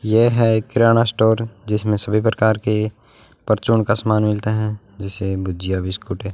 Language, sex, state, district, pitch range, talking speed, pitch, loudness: Hindi, male, Rajasthan, Bikaner, 100-110 Hz, 160 wpm, 110 Hz, -19 LUFS